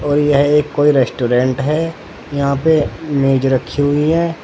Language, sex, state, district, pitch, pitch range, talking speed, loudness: Hindi, male, Uttar Pradesh, Saharanpur, 145 Hz, 135-150 Hz, 160 wpm, -15 LUFS